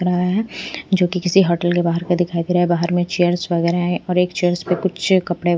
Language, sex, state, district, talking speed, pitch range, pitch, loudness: Hindi, female, Punjab, Pathankot, 255 wpm, 175-180 Hz, 175 Hz, -18 LUFS